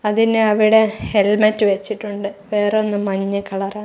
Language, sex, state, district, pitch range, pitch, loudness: Malayalam, female, Kerala, Kozhikode, 200-215 Hz, 210 Hz, -17 LUFS